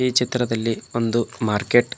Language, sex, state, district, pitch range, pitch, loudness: Kannada, male, Karnataka, Bidar, 115-125 Hz, 120 Hz, -22 LUFS